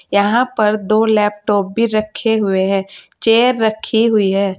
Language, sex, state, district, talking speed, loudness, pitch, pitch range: Hindi, female, Uttar Pradesh, Saharanpur, 155 wpm, -15 LUFS, 215 Hz, 200-225 Hz